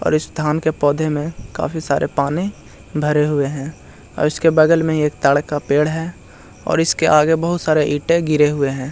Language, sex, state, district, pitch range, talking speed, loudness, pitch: Hindi, male, Bihar, Jahanabad, 145-160 Hz, 215 wpm, -17 LUFS, 150 Hz